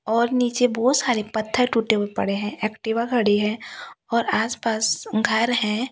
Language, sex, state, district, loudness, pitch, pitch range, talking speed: Hindi, female, Delhi, New Delhi, -22 LUFS, 225 Hz, 215-240 Hz, 170 wpm